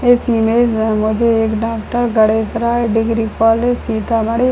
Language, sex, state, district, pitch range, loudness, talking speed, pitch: Hindi, female, Bihar, Sitamarhi, 220-240 Hz, -15 LUFS, 160 wpm, 225 Hz